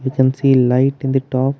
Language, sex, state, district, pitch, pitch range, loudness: English, male, Karnataka, Bangalore, 130 Hz, 130-135 Hz, -16 LUFS